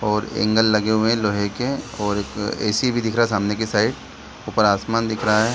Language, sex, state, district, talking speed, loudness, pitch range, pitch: Hindi, male, Bihar, Saran, 240 wpm, -20 LUFS, 105-115 Hz, 110 Hz